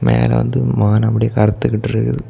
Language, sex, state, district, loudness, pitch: Tamil, male, Tamil Nadu, Kanyakumari, -15 LUFS, 105 Hz